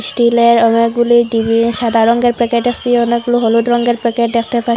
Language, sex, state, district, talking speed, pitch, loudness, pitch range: Bengali, female, Assam, Hailakandi, 165 wpm, 235 Hz, -13 LUFS, 230-240 Hz